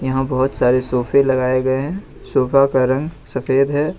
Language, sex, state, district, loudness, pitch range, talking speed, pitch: Hindi, male, Jharkhand, Ranchi, -17 LUFS, 130-140 Hz, 180 wpm, 135 Hz